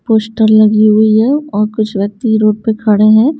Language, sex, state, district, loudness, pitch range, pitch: Hindi, female, Bihar, Patna, -11 LUFS, 215-220 Hz, 215 Hz